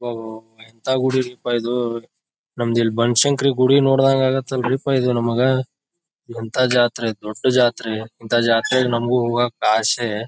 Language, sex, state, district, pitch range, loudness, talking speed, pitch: Kannada, male, Karnataka, Bijapur, 115-130 Hz, -19 LUFS, 140 wpm, 120 Hz